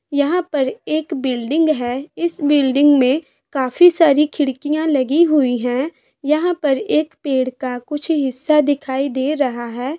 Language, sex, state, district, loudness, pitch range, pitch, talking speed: Hindi, female, Chhattisgarh, Bilaspur, -17 LUFS, 260-310 Hz, 285 Hz, 150 wpm